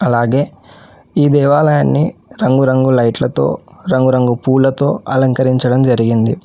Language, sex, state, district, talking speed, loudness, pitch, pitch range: Telugu, male, Telangana, Hyderabad, 85 wpm, -13 LUFS, 130 Hz, 125-135 Hz